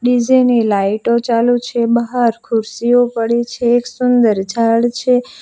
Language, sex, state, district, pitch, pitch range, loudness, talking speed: Gujarati, female, Gujarat, Valsad, 235 Hz, 230-245 Hz, -14 LUFS, 145 wpm